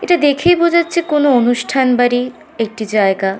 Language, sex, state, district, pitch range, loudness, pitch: Bengali, female, West Bengal, North 24 Parganas, 225-335 Hz, -14 LUFS, 260 Hz